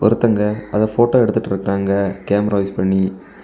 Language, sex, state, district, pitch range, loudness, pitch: Tamil, male, Tamil Nadu, Kanyakumari, 95-110 Hz, -17 LUFS, 100 Hz